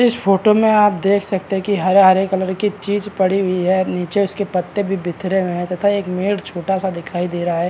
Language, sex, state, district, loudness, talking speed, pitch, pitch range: Hindi, male, Maharashtra, Chandrapur, -17 LUFS, 250 wpm, 195 Hz, 180-200 Hz